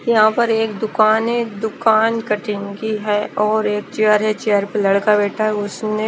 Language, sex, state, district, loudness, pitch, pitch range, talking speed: Hindi, female, Chandigarh, Chandigarh, -17 LUFS, 215 Hz, 210-220 Hz, 195 wpm